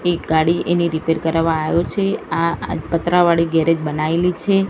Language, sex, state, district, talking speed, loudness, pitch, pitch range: Gujarati, female, Gujarat, Gandhinagar, 155 wpm, -18 LUFS, 165 Hz, 160-175 Hz